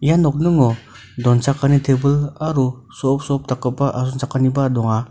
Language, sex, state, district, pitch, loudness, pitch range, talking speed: Garo, male, Meghalaya, North Garo Hills, 135 Hz, -18 LUFS, 125-140 Hz, 105 wpm